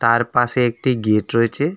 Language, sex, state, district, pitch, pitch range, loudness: Bengali, male, West Bengal, Darjeeling, 120 Hz, 115-125 Hz, -18 LUFS